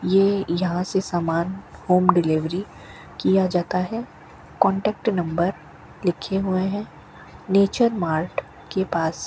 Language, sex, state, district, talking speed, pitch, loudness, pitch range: Hindi, female, Rajasthan, Bikaner, 125 wpm, 185 Hz, -22 LUFS, 175-195 Hz